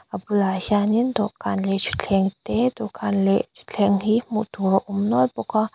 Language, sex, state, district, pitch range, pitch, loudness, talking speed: Mizo, female, Mizoram, Aizawl, 195-215 Hz, 205 Hz, -22 LUFS, 175 wpm